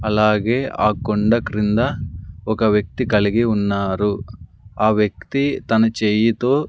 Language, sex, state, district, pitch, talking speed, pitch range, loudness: Telugu, male, Andhra Pradesh, Sri Satya Sai, 105 Hz, 110 wpm, 105-115 Hz, -19 LUFS